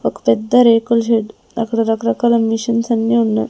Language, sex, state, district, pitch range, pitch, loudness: Telugu, female, Andhra Pradesh, Sri Satya Sai, 225-235 Hz, 230 Hz, -15 LUFS